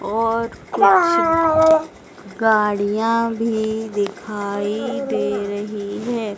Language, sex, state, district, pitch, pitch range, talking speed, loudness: Hindi, female, Madhya Pradesh, Dhar, 220 Hz, 205-230 Hz, 75 wpm, -19 LUFS